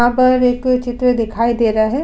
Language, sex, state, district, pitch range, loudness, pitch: Hindi, female, Uttar Pradesh, Budaun, 230-255 Hz, -15 LUFS, 245 Hz